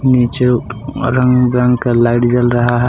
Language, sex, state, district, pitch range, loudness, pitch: Hindi, male, Jharkhand, Palamu, 120-125 Hz, -13 LUFS, 125 Hz